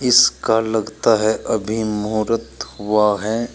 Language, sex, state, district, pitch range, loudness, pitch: Hindi, male, Uttar Pradesh, Shamli, 105-115 Hz, -18 LUFS, 110 Hz